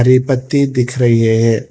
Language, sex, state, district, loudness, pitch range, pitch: Hindi, female, Telangana, Hyderabad, -13 LUFS, 115-130 Hz, 125 Hz